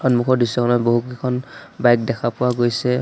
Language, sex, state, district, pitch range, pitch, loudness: Assamese, male, Assam, Sonitpur, 120-125 Hz, 120 Hz, -19 LUFS